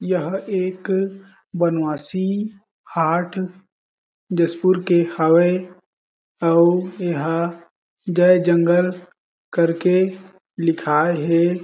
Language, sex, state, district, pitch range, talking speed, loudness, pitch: Chhattisgarhi, male, Chhattisgarh, Jashpur, 170-185 Hz, 75 wpm, -19 LUFS, 180 Hz